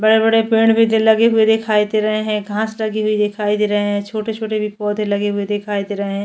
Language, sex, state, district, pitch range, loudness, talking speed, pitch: Hindi, female, Chhattisgarh, Jashpur, 205-220 Hz, -17 LUFS, 280 wpm, 215 Hz